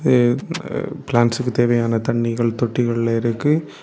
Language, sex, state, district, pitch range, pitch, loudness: Tamil, male, Tamil Nadu, Kanyakumari, 115-125 Hz, 120 Hz, -19 LUFS